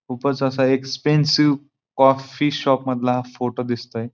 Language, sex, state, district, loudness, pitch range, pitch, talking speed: Marathi, male, Maharashtra, Pune, -20 LUFS, 125-140 Hz, 135 Hz, 130 wpm